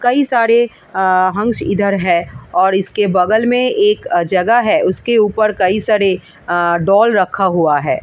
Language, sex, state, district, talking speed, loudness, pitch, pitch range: Hindi, female, Delhi, New Delhi, 170 wpm, -14 LUFS, 200 Hz, 185-230 Hz